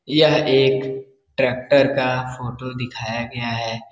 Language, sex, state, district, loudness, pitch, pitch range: Hindi, male, Bihar, Darbhanga, -20 LUFS, 130 Hz, 120-135 Hz